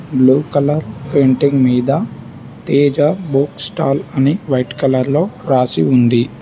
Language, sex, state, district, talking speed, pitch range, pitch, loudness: Telugu, male, Telangana, Hyderabad, 120 wpm, 130-145 Hz, 135 Hz, -15 LUFS